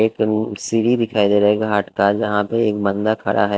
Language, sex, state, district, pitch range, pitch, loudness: Hindi, male, Delhi, New Delhi, 100-110 Hz, 105 Hz, -18 LUFS